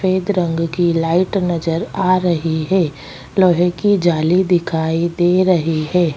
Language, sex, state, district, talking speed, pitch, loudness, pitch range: Hindi, female, Chhattisgarh, Bastar, 145 wpm, 175 Hz, -16 LUFS, 165-185 Hz